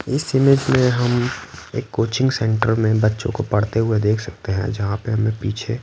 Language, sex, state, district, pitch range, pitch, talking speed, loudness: Hindi, male, Bihar, Patna, 110-125 Hz, 110 Hz, 185 wpm, -19 LUFS